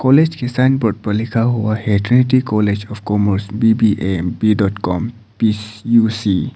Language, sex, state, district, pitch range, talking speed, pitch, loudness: Hindi, male, Arunachal Pradesh, Papum Pare, 105-115 Hz, 185 wpm, 110 Hz, -16 LUFS